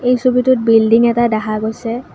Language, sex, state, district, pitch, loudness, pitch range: Assamese, female, Assam, Kamrup Metropolitan, 235 Hz, -14 LUFS, 225-250 Hz